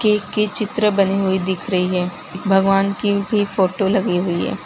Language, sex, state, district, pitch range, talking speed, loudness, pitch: Hindi, female, Gujarat, Valsad, 185-210 Hz, 180 wpm, -18 LUFS, 195 Hz